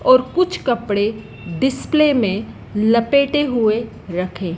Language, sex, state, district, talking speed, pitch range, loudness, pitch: Hindi, female, Madhya Pradesh, Dhar, 105 wpm, 205-270 Hz, -18 LUFS, 230 Hz